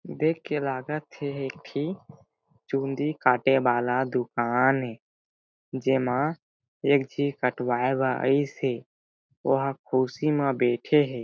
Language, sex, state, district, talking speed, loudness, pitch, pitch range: Chhattisgarhi, male, Chhattisgarh, Jashpur, 135 wpm, -26 LUFS, 135 Hz, 125-140 Hz